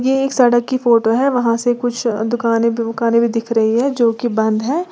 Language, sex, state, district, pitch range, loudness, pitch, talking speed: Hindi, female, Uttar Pradesh, Lalitpur, 230-250 Hz, -16 LUFS, 235 Hz, 230 wpm